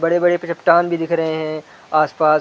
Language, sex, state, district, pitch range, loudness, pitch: Hindi, male, Chhattisgarh, Rajnandgaon, 155-170 Hz, -18 LUFS, 165 Hz